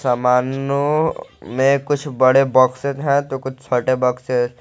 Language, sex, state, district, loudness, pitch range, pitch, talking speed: Hindi, male, Jharkhand, Garhwa, -18 LUFS, 125-140 Hz, 130 Hz, 145 wpm